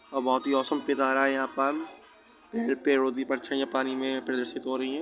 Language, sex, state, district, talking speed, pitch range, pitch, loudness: Hindi, male, Uttar Pradesh, Budaun, 225 wpm, 130-140 Hz, 135 Hz, -26 LUFS